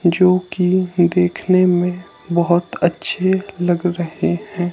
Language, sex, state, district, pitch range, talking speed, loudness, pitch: Hindi, male, Himachal Pradesh, Shimla, 175-185 Hz, 100 wpm, -17 LUFS, 180 Hz